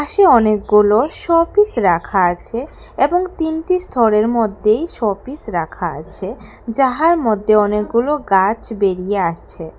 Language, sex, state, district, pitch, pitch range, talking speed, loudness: Bengali, female, Tripura, West Tripura, 215 Hz, 200-295 Hz, 110 wpm, -16 LUFS